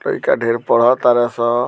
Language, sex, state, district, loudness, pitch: Bhojpuri, male, Bihar, Muzaffarpur, -15 LUFS, 120 Hz